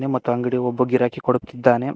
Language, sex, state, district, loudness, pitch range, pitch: Kannada, male, Karnataka, Koppal, -21 LUFS, 125-130 Hz, 125 Hz